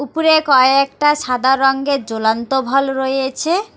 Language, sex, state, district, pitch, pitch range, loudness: Bengali, female, West Bengal, Alipurduar, 270 Hz, 265-290 Hz, -15 LUFS